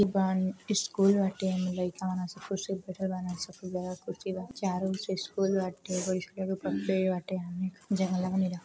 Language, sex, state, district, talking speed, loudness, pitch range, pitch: Bhojpuri, female, Uttar Pradesh, Deoria, 140 wpm, -32 LUFS, 185-190 Hz, 185 Hz